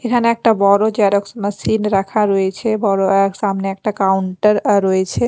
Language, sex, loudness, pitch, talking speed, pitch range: Bengali, female, -16 LUFS, 200 Hz, 160 wpm, 195-215 Hz